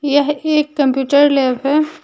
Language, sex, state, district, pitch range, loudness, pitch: Hindi, female, Jharkhand, Deoghar, 275-300 Hz, -15 LUFS, 290 Hz